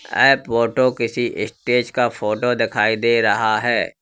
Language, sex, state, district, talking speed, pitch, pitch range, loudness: Hindi, male, Uttar Pradesh, Lalitpur, 150 wpm, 120 Hz, 115-125 Hz, -18 LUFS